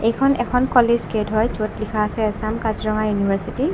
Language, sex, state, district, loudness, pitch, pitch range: Assamese, female, Assam, Kamrup Metropolitan, -20 LUFS, 220 Hz, 215-245 Hz